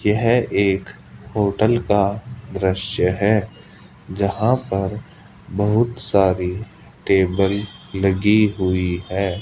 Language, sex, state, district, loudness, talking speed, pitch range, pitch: Hindi, male, Rajasthan, Jaipur, -19 LUFS, 90 wpm, 95-110 Hz, 100 Hz